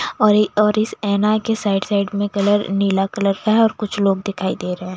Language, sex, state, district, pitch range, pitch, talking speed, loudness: Hindi, female, Bihar, West Champaran, 195-210 Hz, 205 Hz, 255 wpm, -18 LUFS